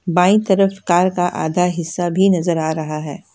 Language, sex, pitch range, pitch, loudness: Hindi, female, 165-185 Hz, 175 Hz, -17 LUFS